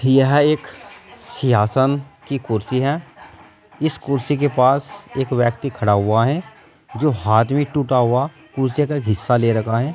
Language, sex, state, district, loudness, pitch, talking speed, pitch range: Hindi, male, Uttar Pradesh, Saharanpur, -19 LUFS, 135 Hz, 155 wpm, 115-145 Hz